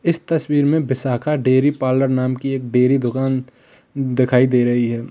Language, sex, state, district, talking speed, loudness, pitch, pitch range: Hindi, male, Uttar Pradesh, Lalitpur, 175 wpm, -18 LUFS, 130 Hz, 125-140 Hz